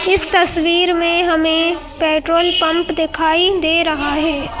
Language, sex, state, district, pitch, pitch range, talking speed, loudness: Hindi, female, Madhya Pradesh, Bhopal, 330 Hz, 320-345 Hz, 130 wpm, -15 LUFS